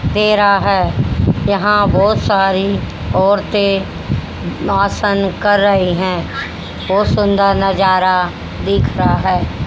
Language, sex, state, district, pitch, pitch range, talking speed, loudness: Hindi, female, Haryana, Jhajjar, 195 Hz, 185-200 Hz, 100 wpm, -14 LUFS